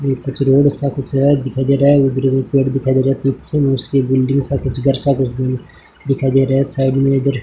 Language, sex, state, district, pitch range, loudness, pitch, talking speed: Hindi, male, Rajasthan, Bikaner, 130-140 Hz, -15 LUFS, 135 Hz, 240 wpm